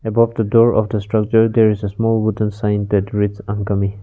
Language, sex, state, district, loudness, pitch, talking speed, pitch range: English, male, Nagaland, Kohima, -17 LUFS, 105 Hz, 210 wpm, 105-110 Hz